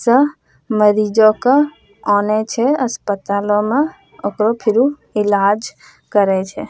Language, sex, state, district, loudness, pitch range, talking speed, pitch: Angika, female, Bihar, Bhagalpur, -16 LUFS, 205-255 Hz, 105 wpm, 215 Hz